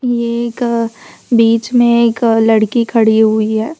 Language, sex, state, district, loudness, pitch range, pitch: Hindi, female, Gujarat, Valsad, -13 LUFS, 225-235 Hz, 230 Hz